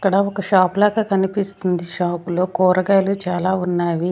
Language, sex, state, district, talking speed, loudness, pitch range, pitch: Telugu, female, Andhra Pradesh, Sri Satya Sai, 145 wpm, -19 LUFS, 180-195 Hz, 185 Hz